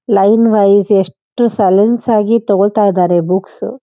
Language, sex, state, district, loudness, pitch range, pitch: Kannada, female, Karnataka, Dharwad, -12 LUFS, 195-225 Hz, 205 Hz